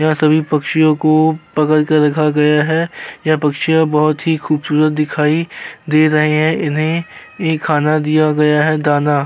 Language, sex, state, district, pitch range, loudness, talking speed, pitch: Hindi, male, Uttar Pradesh, Jyotiba Phule Nagar, 150-155 Hz, -14 LUFS, 160 wpm, 155 Hz